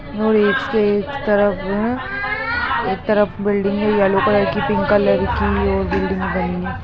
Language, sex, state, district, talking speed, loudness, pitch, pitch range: Hindi, female, Bihar, Muzaffarpur, 125 wpm, -18 LUFS, 205 Hz, 190-215 Hz